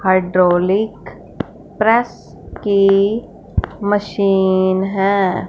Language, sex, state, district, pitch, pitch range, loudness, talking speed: Hindi, female, Punjab, Fazilka, 195 Hz, 185-205 Hz, -16 LUFS, 55 wpm